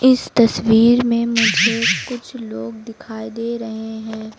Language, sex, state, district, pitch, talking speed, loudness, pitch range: Hindi, female, Uttar Pradesh, Lucknow, 225 Hz, 135 wpm, -17 LUFS, 220-235 Hz